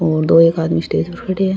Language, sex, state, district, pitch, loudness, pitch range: Rajasthani, female, Rajasthan, Churu, 165 Hz, -15 LUFS, 160-185 Hz